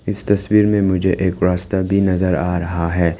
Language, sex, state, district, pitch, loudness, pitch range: Hindi, male, Arunachal Pradesh, Lower Dibang Valley, 95 Hz, -17 LUFS, 90-100 Hz